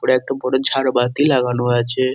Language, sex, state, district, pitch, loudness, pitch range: Bengali, male, West Bengal, Kolkata, 130 Hz, -17 LUFS, 125-135 Hz